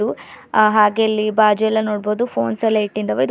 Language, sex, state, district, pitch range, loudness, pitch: Kannada, female, Karnataka, Bidar, 210-220 Hz, -17 LUFS, 215 Hz